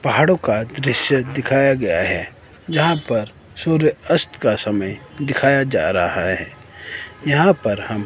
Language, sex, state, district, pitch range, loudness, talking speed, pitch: Hindi, female, Himachal Pradesh, Shimla, 105-150 Hz, -18 LUFS, 140 wpm, 135 Hz